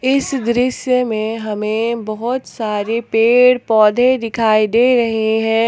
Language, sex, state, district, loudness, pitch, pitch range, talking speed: Hindi, female, Jharkhand, Palamu, -15 LUFS, 230 Hz, 220-250 Hz, 125 wpm